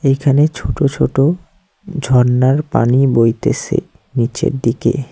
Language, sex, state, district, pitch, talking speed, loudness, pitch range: Bengali, male, West Bengal, Cooch Behar, 135 Hz, 95 wpm, -15 LUFS, 125-150 Hz